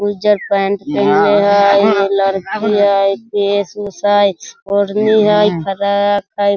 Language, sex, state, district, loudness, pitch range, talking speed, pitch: Hindi, male, Bihar, Sitamarhi, -13 LUFS, 200-205 Hz, 110 wpm, 200 Hz